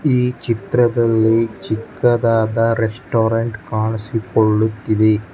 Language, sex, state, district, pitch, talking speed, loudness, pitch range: Kannada, male, Karnataka, Bangalore, 115 Hz, 55 wpm, -17 LUFS, 110-115 Hz